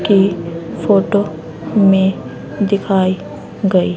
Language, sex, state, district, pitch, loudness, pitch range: Hindi, female, Haryana, Rohtak, 190 Hz, -16 LUFS, 170-200 Hz